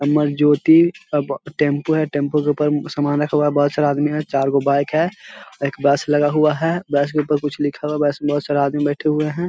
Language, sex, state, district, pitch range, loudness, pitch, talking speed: Hindi, male, Bihar, Jahanabad, 145-150 Hz, -18 LUFS, 150 Hz, 255 wpm